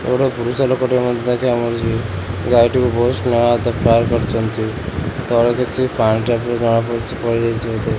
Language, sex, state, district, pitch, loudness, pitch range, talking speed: Odia, male, Odisha, Khordha, 120 Hz, -17 LUFS, 115-125 Hz, 175 wpm